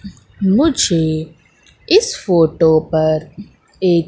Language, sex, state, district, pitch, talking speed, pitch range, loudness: Hindi, female, Madhya Pradesh, Katni, 170 Hz, 75 wpm, 160-200 Hz, -15 LUFS